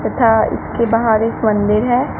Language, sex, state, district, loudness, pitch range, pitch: Hindi, female, Uttar Pradesh, Shamli, -15 LUFS, 215-235 Hz, 225 Hz